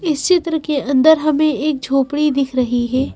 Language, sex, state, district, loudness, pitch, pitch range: Hindi, female, Madhya Pradesh, Bhopal, -16 LUFS, 295 Hz, 270-310 Hz